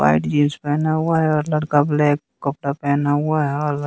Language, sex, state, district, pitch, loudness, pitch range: Hindi, male, Bihar, West Champaran, 145 Hz, -19 LUFS, 145-155 Hz